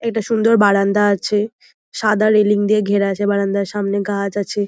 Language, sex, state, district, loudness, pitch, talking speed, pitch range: Bengali, female, West Bengal, Jhargram, -16 LUFS, 205 Hz, 165 wpm, 200-215 Hz